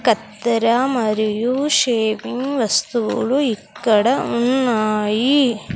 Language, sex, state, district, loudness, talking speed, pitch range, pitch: Telugu, female, Andhra Pradesh, Sri Satya Sai, -18 LUFS, 60 wpm, 215-255 Hz, 235 Hz